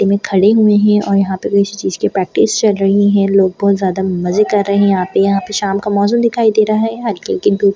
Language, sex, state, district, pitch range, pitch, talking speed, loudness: Hindi, female, Delhi, New Delhi, 195-210 Hz, 200 Hz, 265 wpm, -13 LUFS